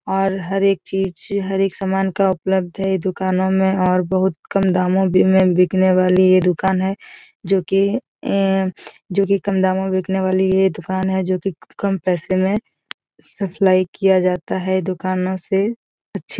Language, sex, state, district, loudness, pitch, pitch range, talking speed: Hindi, female, Bihar, Jahanabad, -18 LUFS, 190 Hz, 185-195 Hz, 180 wpm